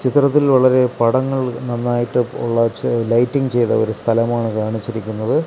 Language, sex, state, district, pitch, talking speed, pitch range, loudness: Malayalam, male, Kerala, Kasaragod, 120 Hz, 110 wpm, 115-130 Hz, -17 LUFS